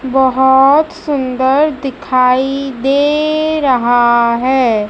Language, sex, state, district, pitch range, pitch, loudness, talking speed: Hindi, male, Madhya Pradesh, Dhar, 255-285 Hz, 265 Hz, -12 LUFS, 75 wpm